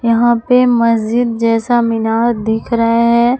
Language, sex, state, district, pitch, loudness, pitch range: Hindi, female, Jharkhand, Palamu, 230 Hz, -13 LUFS, 230-240 Hz